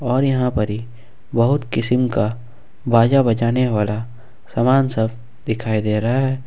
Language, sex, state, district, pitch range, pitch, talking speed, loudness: Hindi, male, Jharkhand, Ranchi, 110-125 Hz, 115 Hz, 140 wpm, -19 LUFS